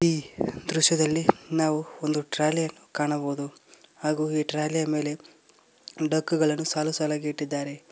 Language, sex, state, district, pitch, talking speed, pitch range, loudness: Kannada, male, Karnataka, Koppal, 155 Hz, 105 wpm, 150-160 Hz, -26 LUFS